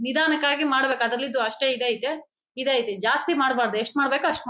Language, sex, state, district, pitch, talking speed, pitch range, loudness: Kannada, female, Karnataka, Bellary, 265 Hz, 160 wpm, 240-295 Hz, -23 LUFS